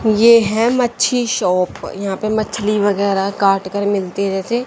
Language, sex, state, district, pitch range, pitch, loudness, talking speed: Hindi, female, Haryana, Charkhi Dadri, 195-230 Hz, 205 Hz, -16 LUFS, 155 wpm